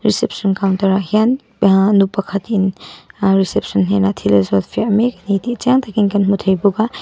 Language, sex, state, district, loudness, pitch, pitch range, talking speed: Mizo, female, Mizoram, Aizawl, -16 LUFS, 200 Hz, 190-215 Hz, 205 wpm